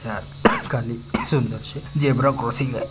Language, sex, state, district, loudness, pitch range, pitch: Marathi, male, Maharashtra, Pune, -20 LUFS, 115-140 Hz, 135 Hz